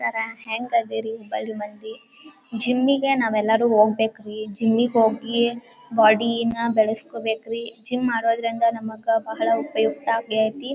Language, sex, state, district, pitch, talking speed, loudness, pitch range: Kannada, female, Karnataka, Dharwad, 225 Hz, 105 wpm, -22 LUFS, 220-235 Hz